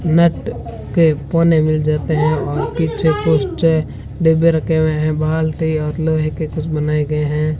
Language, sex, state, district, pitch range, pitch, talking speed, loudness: Hindi, female, Rajasthan, Bikaner, 155-160 Hz, 155 Hz, 165 wpm, -17 LUFS